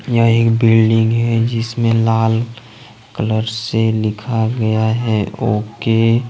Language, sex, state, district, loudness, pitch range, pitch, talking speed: Hindi, male, Jharkhand, Ranchi, -16 LUFS, 110-115 Hz, 115 Hz, 125 wpm